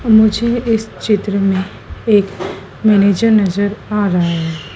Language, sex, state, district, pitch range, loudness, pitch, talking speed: Hindi, female, Madhya Pradesh, Dhar, 190-220 Hz, -15 LUFS, 205 Hz, 125 wpm